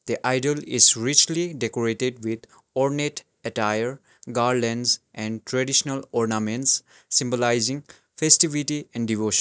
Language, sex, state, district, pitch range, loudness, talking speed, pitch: English, male, Sikkim, Gangtok, 115-140 Hz, -22 LUFS, 110 wpm, 125 Hz